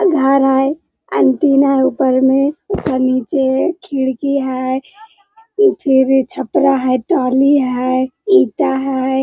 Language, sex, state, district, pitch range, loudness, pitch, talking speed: Hindi, female, Jharkhand, Sahebganj, 260-290 Hz, -14 LUFS, 270 Hz, 115 wpm